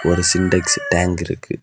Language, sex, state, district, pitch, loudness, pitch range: Tamil, male, Tamil Nadu, Kanyakumari, 90 Hz, -17 LUFS, 85-90 Hz